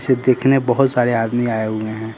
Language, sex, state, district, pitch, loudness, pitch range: Hindi, male, Bihar, Patna, 120 Hz, -17 LUFS, 110-130 Hz